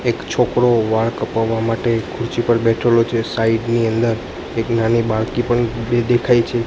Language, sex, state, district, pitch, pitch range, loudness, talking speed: Gujarati, male, Gujarat, Gandhinagar, 115 Hz, 115-120 Hz, -18 LUFS, 180 wpm